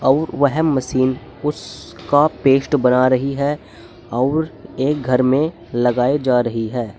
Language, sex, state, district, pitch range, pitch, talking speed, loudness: Hindi, male, Uttar Pradesh, Saharanpur, 125-145 Hz, 130 Hz, 145 wpm, -18 LUFS